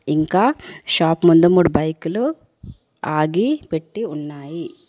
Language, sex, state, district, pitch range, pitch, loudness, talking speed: Telugu, female, Telangana, Komaram Bheem, 155-225 Hz, 170 Hz, -18 LUFS, 100 wpm